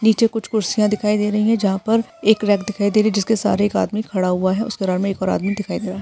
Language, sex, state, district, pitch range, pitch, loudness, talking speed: Hindi, female, Maharashtra, Nagpur, 195-220 Hz, 210 Hz, -19 LUFS, 290 wpm